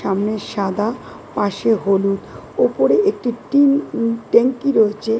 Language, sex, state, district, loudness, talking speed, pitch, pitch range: Bengali, female, West Bengal, Dakshin Dinajpur, -18 LUFS, 115 wpm, 225 Hz, 205-250 Hz